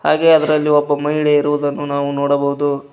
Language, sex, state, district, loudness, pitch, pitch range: Kannada, male, Karnataka, Koppal, -16 LUFS, 145 Hz, 140-150 Hz